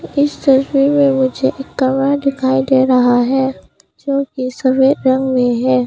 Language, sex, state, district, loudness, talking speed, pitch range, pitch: Hindi, female, Arunachal Pradesh, Papum Pare, -14 LUFS, 165 wpm, 260-275 Hz, 265 Hz